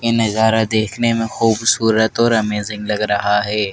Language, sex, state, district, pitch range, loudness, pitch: Hindi, male, Madhya Pradesh, Dhar, 105-115 Hz, -16 LUFS, 110 Hz